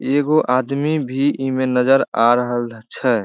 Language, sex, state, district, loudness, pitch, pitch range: Maithili, male, Bihar, Samastipur, -18 LUFS, 130 Hz, 120-140 Hz